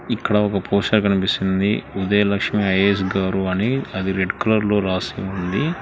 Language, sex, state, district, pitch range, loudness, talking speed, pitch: Telugu, male, Telangana, Hyderabad, 95-105 Hz, -20 LUFS, 135 wpm, 100 Hz